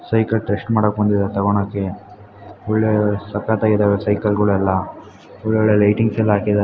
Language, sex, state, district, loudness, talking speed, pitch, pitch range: Kannada, female, Karnataka, Chamarajanagar, -18 LUFS, 135 wpm, 105 Hz, 100-110 Hz